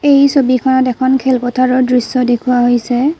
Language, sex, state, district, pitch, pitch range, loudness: Assamese, female, Assam, Kamrup Metropolitan, 255 Hz, 250-260 Hz, -12 LUFS